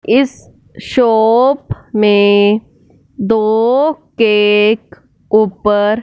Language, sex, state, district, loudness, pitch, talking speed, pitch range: Hindi, male, Punjab, Fazilka, -12 LUFS, 215 Hz, 60 wpm, 210-235 Hz